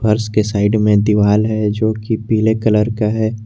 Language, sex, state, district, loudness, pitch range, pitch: Hindi, male, Jharkhand, Garhwa, -15 LUFS, 105-110 Hz, 110 Hz